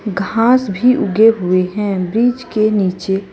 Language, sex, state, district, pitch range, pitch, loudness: Hindi, female, Chhattisgarh, Raipur, 190-225 Hz, 210 Hz, -15 LUFS